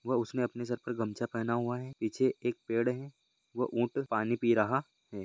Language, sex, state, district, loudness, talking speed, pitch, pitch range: Hindi, male, Rajasthan, Churu, -33 LUFS, 215 wpm, 120 Hz, 115-125 Hz